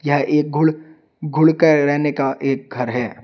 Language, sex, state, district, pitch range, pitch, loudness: Hindi, male, Uttar Pradesh, Shamli, 135-155 Hz, 150 Hz, -17 LUFS